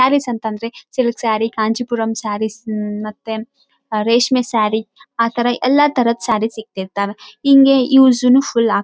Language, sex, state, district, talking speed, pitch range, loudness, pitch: Kannada, female, Karnataka, Raichur, 130 wpm, 220-255 Hz, -16 LUFS, 230 Hz